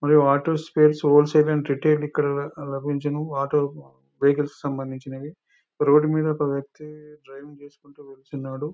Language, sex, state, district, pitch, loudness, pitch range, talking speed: Telugu, male, Telangana, Nalgonda, 145 Hz, -22 LUFS, 140-150 Hz, 130 wpm